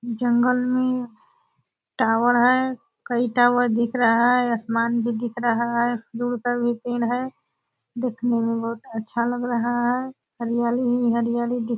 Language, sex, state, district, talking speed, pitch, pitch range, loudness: Hindi, female, Bihar, Purnia, 130 wpm, 240 Hz, 235-245 Hz, -22 LUFS